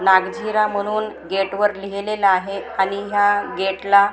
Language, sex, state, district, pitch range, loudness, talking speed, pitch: Marathi, female, Maharashtra, Gondia, 195-210 Hz, -20 LUFS, 130 wpm, 200 Hz